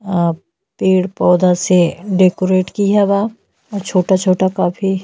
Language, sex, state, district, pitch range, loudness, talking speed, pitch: Bhojpuri, female, Uttar Pradesh, Ghazipur, 180-200 Hz, -15 LUFS, 145 wpm, 185 Hz